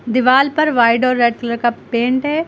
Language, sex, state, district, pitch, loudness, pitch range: Hindi, female, Uttar Pradesh, Lucknow, 250 Hz, -15 LUFS, 235-270 Hz